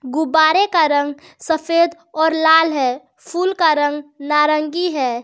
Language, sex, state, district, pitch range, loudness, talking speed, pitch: Hindi, female, Jharkhand, Garhwa, 290-330 Hz, -16 LUFS, 135 wpm, 315 Hz